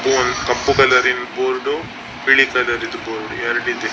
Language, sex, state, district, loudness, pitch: Kannada, male, Karnataka, Dakshina Kannada, -17 LUFS, 135 Hz